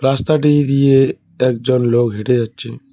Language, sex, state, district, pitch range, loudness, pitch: Bengali, male, West Bengal, Cooch Behar, 120-140 Hz, -15 LUFS, 130 Hz